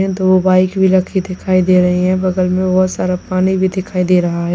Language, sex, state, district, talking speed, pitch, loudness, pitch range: Hindi, male, Uttar Pradesh, Lalitpur, 235 wpm, 185 Hz, -14 LUFS, 180-185 Hz